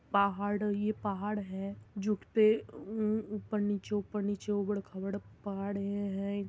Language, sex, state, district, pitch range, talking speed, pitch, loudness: Hindi, female, Uttar Pradesh, Muzaffarnagar, 200-210 Hz, 100 wpm, 205 Hz, -34 LUFS